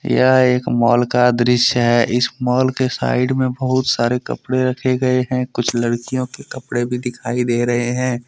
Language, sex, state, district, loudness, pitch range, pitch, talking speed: Hindi, male, Jharkhand, Deoghar, -17 LUFS, 120-130 Hz, 125 Hz, 190 wpm